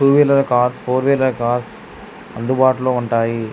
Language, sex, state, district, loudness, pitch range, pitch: Telugu, male, Andhra Pradesh, Krishna, -17 LUFS, 120-130 Hz, 125 Hz